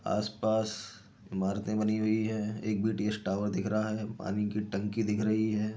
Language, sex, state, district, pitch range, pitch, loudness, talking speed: Hindi, male, Uttar Pradesh, Jyotiba Phule Nagar, 105-110 Hz, 105 Hz, -32 LUFS, 175 wpm